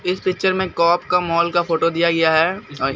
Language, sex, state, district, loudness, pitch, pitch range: Hindi, male, Bihar, Katihar, -18 LUFS, 170 Hz, 165-180 Hz